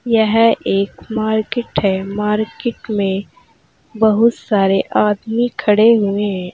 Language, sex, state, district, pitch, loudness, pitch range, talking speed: Hindi, female, Uttar Pradesh, Saharanpur, 215 Hz, -16 LUFS, 200-225 Hz, 110 wpm